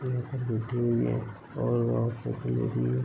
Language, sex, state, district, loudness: Marathi, male, Maharashtra, Sindhudurg, -30 LUFS